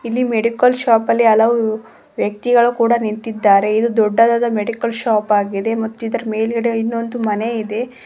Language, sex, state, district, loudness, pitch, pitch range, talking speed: Kannada, female, Karnataka, Koppal, -16 LUFS, 230 Hz, 220-235 Hz, 140 wpm